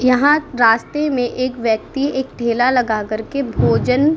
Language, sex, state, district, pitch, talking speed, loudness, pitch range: Hindi, female, Uttar Pradesh, Muzaffarnagar, 250 Hz, 175 wpm, -17 LUFS, 235-280 Hz